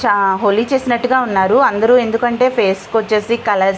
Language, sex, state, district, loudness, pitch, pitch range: Telugu, female, Andhra Pradesh, Visakhapatnam, -14 LUFS, 225 Hz, 200-240 Hz